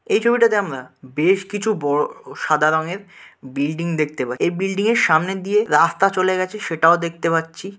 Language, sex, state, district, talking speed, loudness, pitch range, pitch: Bengali, male, West Bengal, Dakshin Dinajpur, 175 wpm, -19 LUFS, 155-200 Hz, 180 Hz